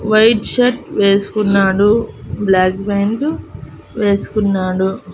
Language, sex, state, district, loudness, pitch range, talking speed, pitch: Telugu, female, Andhra Pradesh, Annamaya, -15 LUFS, 195-220 Hz, 70 wpm, 205 Hz